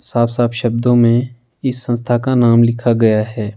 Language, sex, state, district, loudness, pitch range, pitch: Hindi, male, Himachal Pradesh, Shimla, -15 LUFS, 115-120 Hz, 120 Hz